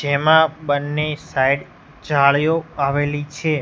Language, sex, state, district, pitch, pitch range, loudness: Gujarati, male, Gujarat, Gandhinagar, 145 Hz, 140-155 Hz, -18 LUFS